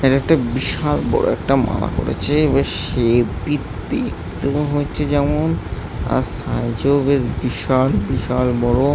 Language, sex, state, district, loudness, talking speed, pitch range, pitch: Bengali, male, West Bengal, Malda, -19 LUFS, 125 wpm, 120-145 Hz, 135 Hz